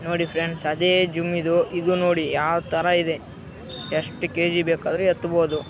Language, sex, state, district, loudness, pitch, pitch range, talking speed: Kannada, male, Karnataka, Raichur, -22 LUFS, 170 Hz, 165-175 Hz, 145 wpm